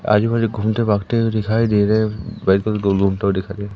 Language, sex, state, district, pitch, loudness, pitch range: Hindi, male, Madhya Pradesh, Umaria, 105 Hz, -18 LUFS, 100-110 Hz